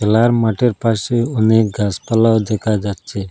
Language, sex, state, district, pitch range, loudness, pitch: Bengali, male, Assam, Hailakandi, 105-115 Hz, -16 LUFS, 110 Hz